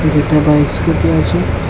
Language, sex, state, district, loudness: Bengali, male, Tripura, West Tripura, -13 LUFS